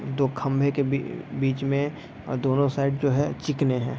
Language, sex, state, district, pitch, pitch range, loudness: Hindi, male, Bihar, East Champaran, 140 Hz, 135-140 Hz, -25 LUFS